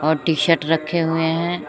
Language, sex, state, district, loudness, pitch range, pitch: Hindi, female, Jharkhand, Palamu, -19 LUFS, 155-165 Hz, 165 Hz